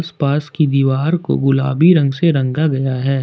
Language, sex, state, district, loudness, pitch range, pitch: Hindi, male, Jharkhand, Ranchi, -15 LUFS, 135-160 Hz, 140 Hz